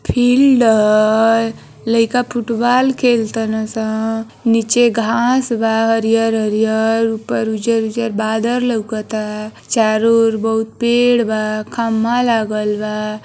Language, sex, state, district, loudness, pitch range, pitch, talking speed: Bhojpuri, female, Uttar Pradesh, Deoria, -15 LUFS, 220-235 Hz, 225 Hz, 105 wpm